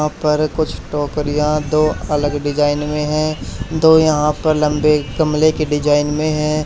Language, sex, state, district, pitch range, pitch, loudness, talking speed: Hindi, male, Haryana, Charkhi Dadri, 150-155 Hz, 150 Hz, -16 LUFS, 160 wpm